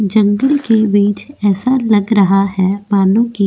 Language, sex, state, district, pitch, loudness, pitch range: Hindi, female, Goa, North and South Goa, 205 Hz, -13 LUFS, 195-225 Hz